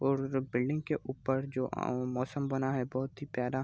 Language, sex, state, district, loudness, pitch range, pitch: Hindi, male, Bihar, Araria, -34 LUFS, 130-135 Hz, 130 Hz